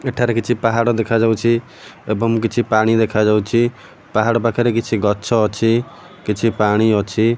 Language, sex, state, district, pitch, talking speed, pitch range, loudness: Odia, male, Odisha, Malkangiri, 115 Hz, 130 wpm, 110-115 Hz, -17 LUFS